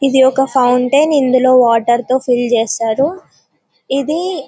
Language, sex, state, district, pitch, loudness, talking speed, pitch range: Telugu, female, Telangana, Karimnagar, 260 Hz, -13 LUFS, 120 wpm, 245-275 Hz